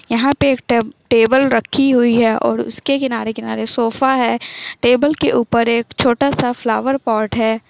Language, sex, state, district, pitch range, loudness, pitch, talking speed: Hindi, female, Bihar, Lakhisarai, 230-265 Hz, -16 LUFS, 240 Hz, 180 wpm